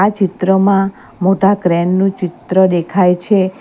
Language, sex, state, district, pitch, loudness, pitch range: Gujarati, female, Gujarat, Valsad, 190 Hz, -14 LUFS, 180-195 Hz